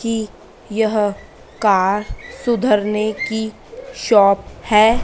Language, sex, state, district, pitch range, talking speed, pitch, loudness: Hindi, female, Madhya Pradesh, Dhar, 210-230 Hz, 85 wpm, 215 Hz, -18 LUFS